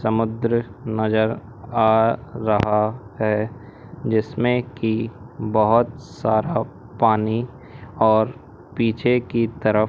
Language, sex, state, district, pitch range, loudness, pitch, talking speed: Hindi, male, Madhya Pradesh, Umaria, 110-120 Hz, -21 LUFS, 110 Hz, 85 wpm